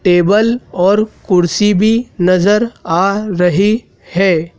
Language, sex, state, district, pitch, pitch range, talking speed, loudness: Hindi, male, Madhya Pradesh, Dhar, 195 Hz, 180-215 Hz, 105 wpm, -13 LUFS